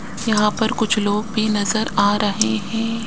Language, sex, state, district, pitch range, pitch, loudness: Hindi, male, Rajasthan, Jaipur, 210-220 Hz, 220 Hz, -19 LUFS